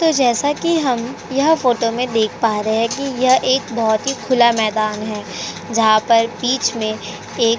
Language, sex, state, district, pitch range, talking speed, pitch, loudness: Hindi, female, Uttar Pradesh, Jalaun, 220-260 Hz, 200 wpm, 230 Hz, -17 LUFS